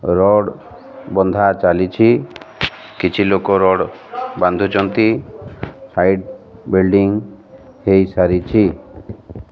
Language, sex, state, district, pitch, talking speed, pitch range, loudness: Odia, male, Odisha, Malkangiri, 100 Hz, 70 wpm, 95-110 Hz, -16 LUFS